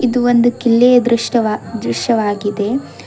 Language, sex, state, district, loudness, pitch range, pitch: Kannada, female, Karnataka, Bidar, -15 LUFS, 210-245 Hz, 235 Hz